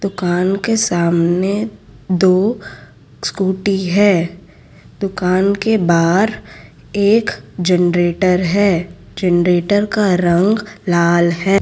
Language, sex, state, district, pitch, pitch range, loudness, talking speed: Hindi, female, Gujarat, Valsad, 185 Hz, 175-200 Hz, -15 LUFS, 90 wpm